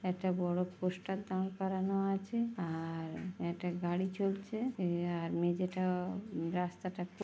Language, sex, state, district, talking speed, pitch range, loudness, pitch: Bengali, female, West Bengal, North 24 Parganas, 125 wpm, 175-190 Hz, -37 LUFS, 185 Hz